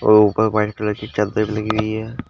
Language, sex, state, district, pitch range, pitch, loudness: Hindi, male, Uttar Pradesh, Shamli, 105-110 Hz, 105 Hz, -19 LUFS